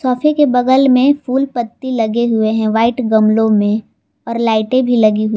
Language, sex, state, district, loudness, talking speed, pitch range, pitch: Hindi, female, Jharkhand, Palamu, -14 LUFS, 190 wpm, 220-255 Hz, 235 Hz